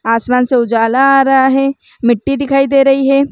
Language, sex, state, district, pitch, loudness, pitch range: Chhattisgarhi, female, Chhattisgarh, Raigarh, 270 Hz, -12 LUFS, 245-275 Hz